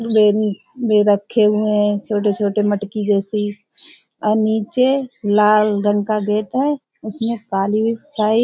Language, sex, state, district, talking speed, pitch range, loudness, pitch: Hindi, female, Uttar Pradesh, Budaun, 115 wpm, 205-225 Hz, -18 LUFS, 210 Hz